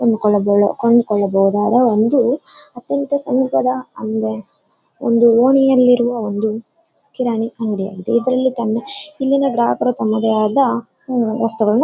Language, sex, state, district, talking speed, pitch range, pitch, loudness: Kannada, female, Karnataka, Bellary, 80 wpm, 210-255 Hz, 235 Hz, -16 LUFS